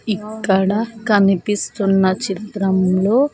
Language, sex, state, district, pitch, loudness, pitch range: Telugu, female, Andhra Pradesh, Sri Satya Sai, 205 Hz, -17 LUFS, 195-215 Hz